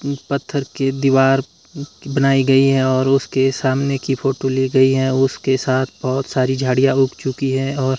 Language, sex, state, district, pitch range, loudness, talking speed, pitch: Hindi, male, Himachal Pradesh, Shimla, 130-135 Hz, -17 LUFS, 175 wpm, 135 Hz